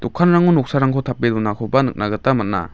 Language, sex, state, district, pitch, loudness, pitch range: Garo, male, Meghalaya, West Garo Hills, 125 Hz, -17 LUFS, 105-135 Hz